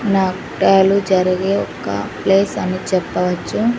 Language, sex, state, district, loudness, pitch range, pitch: Telugu, female, Andhra Pradesh, Sri Satya Sai, -17 LUFS, 185-195 Hz, 190 Hz